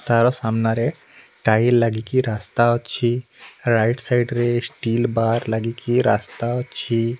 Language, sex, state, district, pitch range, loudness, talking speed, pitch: Odia, male, Odisha, Nuapada, 115-125 Hz, -20 LUFS, 115 wpm, 120 Hz